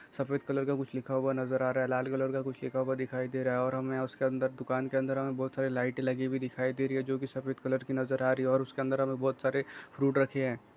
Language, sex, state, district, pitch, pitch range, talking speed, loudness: Hindi, male, Chhattisgarh, Bastar, 130 Hz, 130-135 Hz, 305 wpm, -32 LUFS